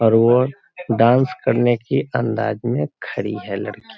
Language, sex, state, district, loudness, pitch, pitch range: Hindi, male, Bihar, Sitamarhi, -19 LUFS, 115 Hz, 105-125 Hz